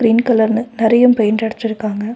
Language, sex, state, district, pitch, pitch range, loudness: Tamil, female, Tamil Nadu, Nilgiris, 225 Hz, 220-235 Hz, -14 LUFS